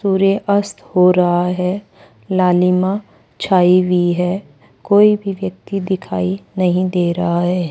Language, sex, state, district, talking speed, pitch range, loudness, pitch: Hindi, female, Rajasthan, Jaipur, 130 wpm, 180-195 Hz, -16 LUFS, 180 Hz